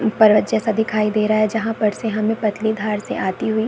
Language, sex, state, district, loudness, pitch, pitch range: Hindi, female, Bihar, Saharsa, -19 LUFS, 215 Hz, 215-220 Hz